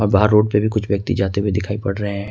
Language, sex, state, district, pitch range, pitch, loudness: Hindi, male, Jharkhand, Ranchi, 100-105 Hz, 105 Hz, -18 LUFS